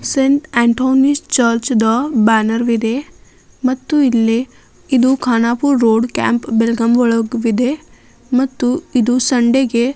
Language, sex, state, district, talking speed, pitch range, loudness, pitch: Kannada, female, Karnataka, Belgaum, 115 wpm, 230-265 Hz, -15 LUFS, 245 Hz